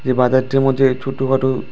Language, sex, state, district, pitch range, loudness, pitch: Bengali, male, Tripura, West Tripura, 130-135 Hz, -16 LUFS, 130 Hz